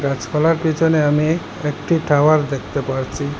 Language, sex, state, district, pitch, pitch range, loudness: Bengali, male, Assam, Hailakandi, 150 Hz, 140-160 Hz, -18 LUFS